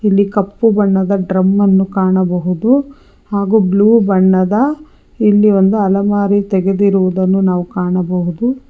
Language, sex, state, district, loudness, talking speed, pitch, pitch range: Kannada, female, Karnataka, Bangalore, -13 LUFS, 95 wpm, 200 Hz, 190-210 Hz